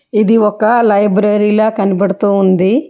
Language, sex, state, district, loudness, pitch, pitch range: Telugu, female, Telangana, Hyderabad, -12 LUFS, 210 Hz, 200-220 Hz